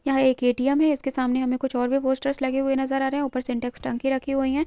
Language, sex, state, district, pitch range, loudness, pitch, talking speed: Hindi, female, Uttarakhand, Tehri Garhwal, 255-275 Hz, -24 LUFS, 270 Hz, 295 wpm